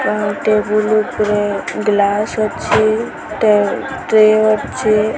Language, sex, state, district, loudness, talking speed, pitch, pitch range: Odia, female, Odisha, Sambalpur, -15 LUFS, 95 wpm, 215 Hz, 210-215 Hz